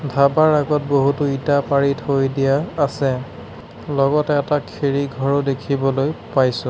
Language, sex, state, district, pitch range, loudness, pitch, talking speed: Assamese, male, Assam, Sonitpur, 135-145 Hz, -19 LUFS, 140 Hz, 125 wpm